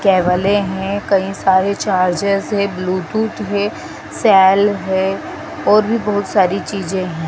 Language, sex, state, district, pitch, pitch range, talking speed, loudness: Hindi, female, Madhya Pradesh, Dhar, 195 Hz, 190-205 Hz, 130 wpm, -16 LUFS